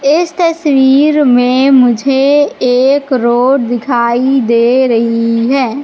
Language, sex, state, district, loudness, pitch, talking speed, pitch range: Hindi, female, Madhya Pradesh, Katni, -10 LUFS, 260 Hz, 105 wpm, 240-275 Hz